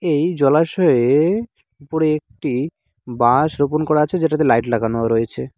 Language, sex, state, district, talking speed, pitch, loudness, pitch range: Bengali, male, West Bengal, Cooch Behar, 130 wpm, 145 Hz, -18 LUFS, 115-155 Hz